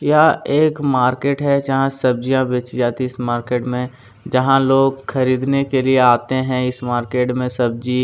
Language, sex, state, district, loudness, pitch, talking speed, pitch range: Hindi, male, Chhattisgarh, Kabirdham, -17 LUFS, 130 Hz, 180 wpm, 125-135 Hz